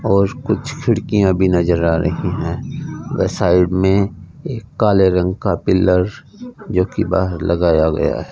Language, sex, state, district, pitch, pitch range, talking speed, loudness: Hindi, male, Punjab, Fazilka, 95 Hz, 90-105 Hz, 160 wpm, -17 LUFS